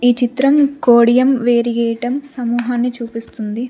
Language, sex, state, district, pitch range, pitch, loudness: Telugu, female, Telangana, Mahabubabad, 235-255 Hz, 245 Hz, -15 LUFS